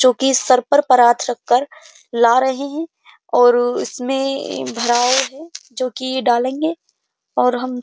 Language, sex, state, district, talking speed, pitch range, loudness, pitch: Hindi, female, Uttar Pradesh, Jyotiba Phule Nagar, 125 wpm, 245-280 Hz, -17 LUFS, 255 Hz